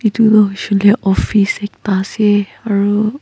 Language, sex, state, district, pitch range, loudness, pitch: Nagamese, female, Nagaland, Kohima, 200-215 Hz, -14 LUFS, 205 Hz